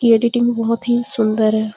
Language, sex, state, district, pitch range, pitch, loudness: Hindi, female, Chhattisgarh, Bastar, 220-240 Hz, 230 Hz, -17 LUFS